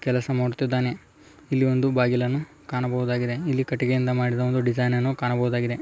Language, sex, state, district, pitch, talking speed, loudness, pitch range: Kannada, male, Karnataka, Raichur, 125 Hz, 125 wpm, -24 LUFS, 125-130 Hz